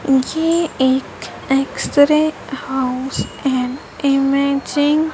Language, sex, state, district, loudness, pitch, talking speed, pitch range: Hindi, female, Madhya Pradesh, Dhar, -17 LUFS, 275 Hz, 80 wpm, 265-300 Hz